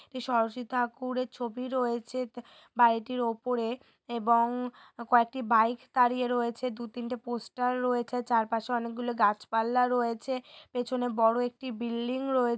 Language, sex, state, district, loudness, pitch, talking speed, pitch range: Bengali, female, West Bengal, Purulia, -30 LUFS, 245 Hz, 115 wpm, 235-250 Hz